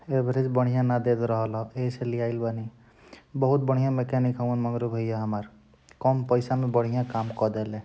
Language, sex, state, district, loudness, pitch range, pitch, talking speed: Bhojpuri, male, Bihar, Gopalganj, -26 LUFS, 115-125 Hz, 120 Hz, 175 wpm